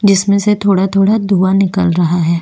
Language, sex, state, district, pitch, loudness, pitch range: Hindi, female, Uttarakhand, Tehri Garhwal, 195 Hz, -12 LUFS, 185-200 Hz